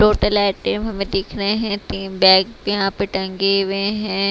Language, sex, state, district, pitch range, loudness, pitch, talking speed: Hindi, female, Maharashtra, Gondia, 195-205 Hz, -18 LUFS, 195 Hz, 180 wpm